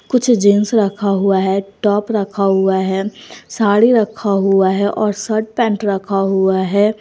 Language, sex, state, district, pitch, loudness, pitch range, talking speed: Hindi, female, Jharkhand, Garhwa, 205 Hz, -15 LUFS, 195-215 Hz, 165 wpm